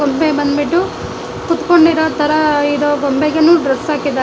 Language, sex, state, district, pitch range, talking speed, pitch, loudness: Kannada, female, Karnataka, Bangalore, 290-315 Hz, 100 wpm, 300 Hz, -13 LUFS